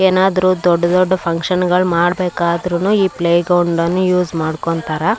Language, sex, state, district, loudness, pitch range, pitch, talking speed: Kannada, male, Karnataka, Raichur, -15 LUFS, 170-185 Hz, 175 Hz, 140 wpm